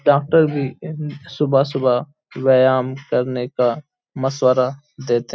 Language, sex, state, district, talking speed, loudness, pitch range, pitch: Hindi, male, Uttar Pradesh, Hamirpur, 100 wpm, -19 LUFS, 130-150 Hz, 135 Hz